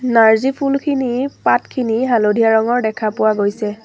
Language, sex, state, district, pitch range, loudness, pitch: Assamese, female, Assam, Sonitpur, 220-255 Hz, -16 LUFS, 230 Hz